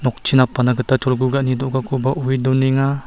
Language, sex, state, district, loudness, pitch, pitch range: Garo, male, Meghalaya, South Garo Hills, -18 LUFS, 130 Hz, 130-135 Hz